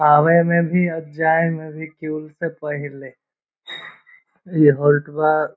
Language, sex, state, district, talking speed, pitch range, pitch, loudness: Magahi, male, Bihar, Lakhisarai, 130 wpm, 150-170 Hz, 155 Hz, -18 LUFS